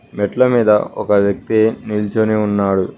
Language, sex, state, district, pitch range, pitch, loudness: Telugu, male, Telangana, Mahabubabad, 100-110 Hz, 105 Hz, -16 LUFS